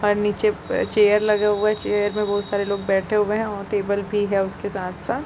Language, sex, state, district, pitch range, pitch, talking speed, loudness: Hindi, female, Chhattisgarh, Bilaspur, 200-210 Hz, 205 Hz, 265 wpm, -21 LUFS